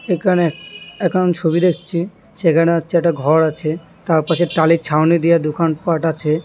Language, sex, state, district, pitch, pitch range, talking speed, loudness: Bengali, male, West Bengal, North 24 Parganas, 165 Hz, 160-175 Hz, 160 wpm, -16 LUFS